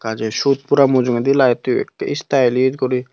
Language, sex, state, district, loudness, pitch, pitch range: Chakma, male, Tripura, Unakoti, -17 LUFS, 130 Hz, 120-135 Hz